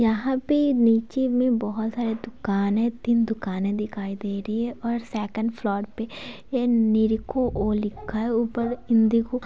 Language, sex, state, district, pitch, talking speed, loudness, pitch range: Hindi, female, Bihar, Sitamarhi, 225 Hz, 135 wpm, -24 LUFS, 210-240 Hz